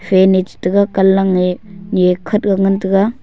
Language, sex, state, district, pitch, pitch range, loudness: Wancho, male, Arunachal Pradesh, Longding, 195 Hz, 185-195 Hz, -14 LUFS